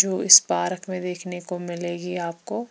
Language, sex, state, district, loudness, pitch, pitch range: Hindi, female, Chandigarh, Chandigarh, -21 LUFS, 180 Hz, 175-185 Hz